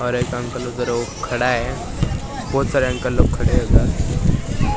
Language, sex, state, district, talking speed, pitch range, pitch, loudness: Hindi, male, Maharashtra, Mumbai Suburban, 175 wpm, 120-125 Hz, 125 Hz, -20 LUFS